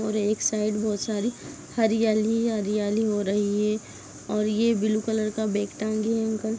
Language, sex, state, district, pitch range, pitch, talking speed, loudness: Hindi, female, Bihar, Sitamarhi, 210-220 Hz, 215 Hz, 175 wpm, -25 LUFS